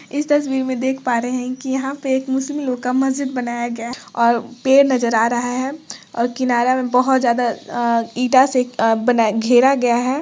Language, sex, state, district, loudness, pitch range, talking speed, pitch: Hindi, female, Bihar, Gopalganj, -18 LUFS, 240-265 Hz, 205 wpm, 250 Hz